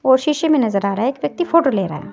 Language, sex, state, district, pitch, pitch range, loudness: Hindi, female, Himachal Pradesh, Shimla, 265 Hz, 200-310 Hz, -17 LUFS